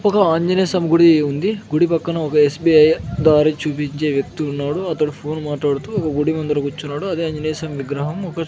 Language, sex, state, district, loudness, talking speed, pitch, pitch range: Telugu, male, Andhra Pradesh, Sri Satya Sai, -18 LUFS, 170 wpm, 155 Hz, 145-165 Hz